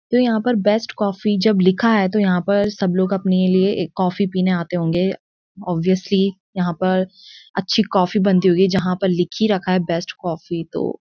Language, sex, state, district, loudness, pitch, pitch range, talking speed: Hindi, female, Uttarakhand, Uttarkashi, -19 LUFS, 190 Hz, 180-205 Hz, 190 wpm